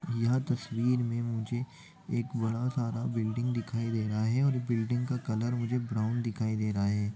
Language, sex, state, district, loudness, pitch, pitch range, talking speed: Hindi, male, West Bengal, Malda, -31 LUFS, 115 Hz, 110-125 Hz, 175 wpm